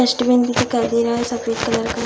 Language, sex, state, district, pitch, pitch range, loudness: Hindi, female, Bihar, Saharsa, 240 Hz, 235-250 Hz, -18 LUFS